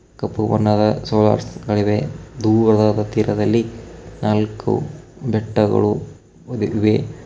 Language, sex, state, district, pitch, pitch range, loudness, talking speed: Kannada, male, Karnataka, Koppal, 110 Hz, 105-115 Hz, -18 LUFS, 75 wpm